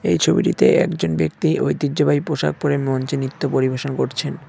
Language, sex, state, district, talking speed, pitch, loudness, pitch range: Bengali, male, West Bengal, Cooch Behar, 145 wpm, 130 Hz, -19 LUFS, 80-135 Hz